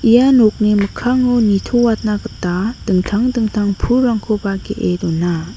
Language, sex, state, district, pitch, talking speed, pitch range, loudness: Garo, female, Meghalaya, North Garo Hills, 215 Hz, 110 wpm, 195-240 Hz, -15 LUFS